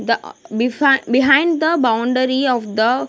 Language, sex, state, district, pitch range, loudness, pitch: English, female, Punjab, Kapurthala, 235-275 Hz, -16 LUFS, 255 Hz